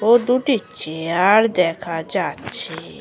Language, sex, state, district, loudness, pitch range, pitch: Bengali, female, West Bengal, Malda, -19 LUFS, 165-230 Hz, 195 Hz